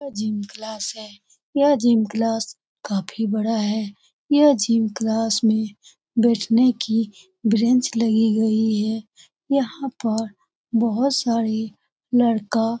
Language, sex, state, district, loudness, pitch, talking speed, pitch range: Hindi, female, Bihar, Saran, -21 LUFS, 225 Hz, 135 wpm, 215-235 Hz